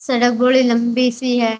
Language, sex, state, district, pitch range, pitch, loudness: Rajasthani, female, Rajasthan, Churu, 235-250 Hz, 245 Hz, -16 LUFS